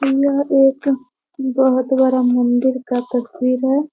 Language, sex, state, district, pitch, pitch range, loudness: Hindi, female, Bihar, Muzaffarpur, 260 Hz, 250-270 Hz, -17 LUFS